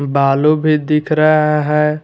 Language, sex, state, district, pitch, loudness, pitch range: Hindi, male, Jharkhand, Garhwa, 150 Hz, -14 LUFS, 150-155 Hz